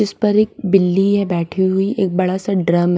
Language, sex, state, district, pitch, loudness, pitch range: Hindi, female, Maharashtra, Mumbai Suburban, 190 Hz, -16 LUFS, 185-200 Hz